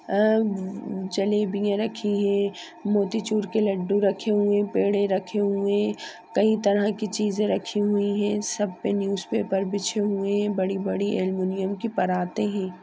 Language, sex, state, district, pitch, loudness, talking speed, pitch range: Hindi, female, Bihar, Madhepura, 205 Hz, -25 LUFS, 150 wpm, 195-210 Hz